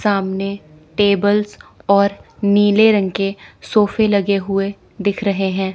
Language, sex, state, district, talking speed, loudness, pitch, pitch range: Hindi, female, Chandigarh, Chandigarh, 125 wpm, -17 LUFS, 200 Hz, 195-205 Hz